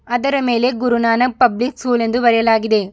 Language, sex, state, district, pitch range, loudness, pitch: Kannada, female, Karnataka, Bidar, 230-250 Hz, -16 LUFS, 240 Hz